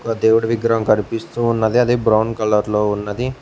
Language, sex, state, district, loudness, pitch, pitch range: Telugu, male, Telangana, Mahabubabad, -17 LUFS, 115 Hz, 110-115 Hz